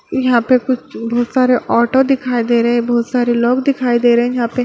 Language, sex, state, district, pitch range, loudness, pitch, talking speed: Hindi, female, Bihar, Bhagalpur, 235-255 Hz, -14 LUFS, 240 Hz, 245 wpm